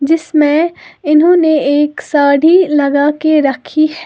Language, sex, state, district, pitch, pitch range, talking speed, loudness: Hindi, female, Uttar Pradesh, Lalitpur, 305 Hz, 290-325 Hz, 120 wpm, -11 LUFS